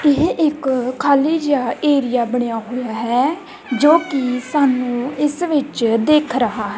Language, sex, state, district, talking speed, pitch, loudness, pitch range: Punjabi, female, Punjab, Kapurthala, 135 wpm, 265 Hz, -17 LUFS, 245-295 Hz